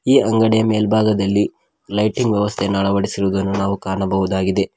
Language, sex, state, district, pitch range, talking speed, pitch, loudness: Kannada, male, Karnataka, Koppal, 95-110 Hz, 100 wpm, 100 Hz, -18 LUFS